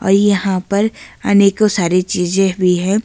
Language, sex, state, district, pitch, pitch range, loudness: Hindi, female, Himachal Pradesh, Shimla, 195 Hz, 185-205 Hz, -15 LUFS